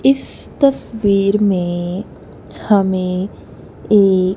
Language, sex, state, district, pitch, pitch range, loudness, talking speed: Hindi, female, Punjab, Kapurthala, 195 Hz, 185-210 Hz, -16 LUFS, 70 wpm